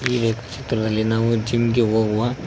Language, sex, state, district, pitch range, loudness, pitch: Kannada, male, Karnataka, Koppal, 110-120 Hz, -21 LUFS, 115 Hz